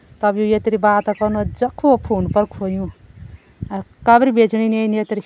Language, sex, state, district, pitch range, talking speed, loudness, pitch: Garhwali, female, Uttarakhand, Tehri Garhwal, 195-220 Hz, 170 wpm, -17 LUFS, 215 Hz